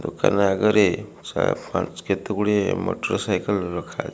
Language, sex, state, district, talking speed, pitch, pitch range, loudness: Odia, male, Odisha, Malkangiri, 100 wpm, 100 Hz, 95-105 Hz, -23 LUFS